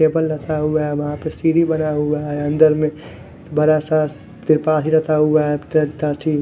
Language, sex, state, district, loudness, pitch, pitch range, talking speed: Hindi, male, Punjab, Fazilka, -18 LUFS, 155 Hz, 150-155 Hz, 185 wpm